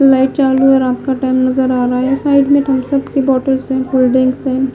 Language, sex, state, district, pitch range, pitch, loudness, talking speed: Hindi, female, Himachal Pradesh, Shimla, 255-270 Hz, 265 Hz, -13 LUFS, 240 wpm